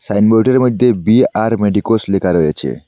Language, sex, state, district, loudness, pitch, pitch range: Bengali, male, Assam, Hailakandi, -13 LUFS, 110 Hz, 100-120 Hz